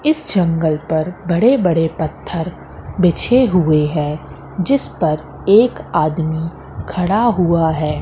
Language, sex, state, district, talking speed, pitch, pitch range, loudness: Hindi, female, Madhya Pradesh, Katni, 120 wpm, 170 Hz, 155-190 Hz, -16 LUFS